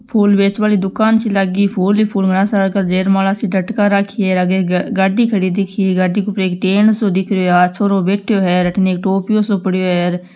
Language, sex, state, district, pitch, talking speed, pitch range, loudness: Marwari, female, Rajasthan, Nagaur, 195 Hz, 245 wpm, 185-205 Hz, -14 LUFS